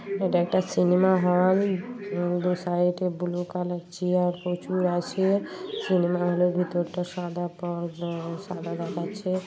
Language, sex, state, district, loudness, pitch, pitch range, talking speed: Bengali, female, West Bengal, Paschim Medinipur, -26 LUFS, 180 Hz, 175-185 Hz, 125 wpm